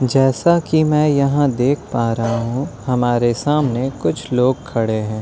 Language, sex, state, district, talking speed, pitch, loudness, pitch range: Hindi, male, Delhi, New Delhi, 160 wpm, 130 Hz, -17 LUFS, 120-145 Hz